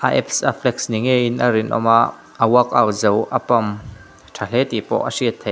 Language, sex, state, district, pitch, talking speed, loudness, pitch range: Mizo, male, Mizoram, Aizawl, 115 Hz, 215 wpm, -18 LUFS, 110-120 Hz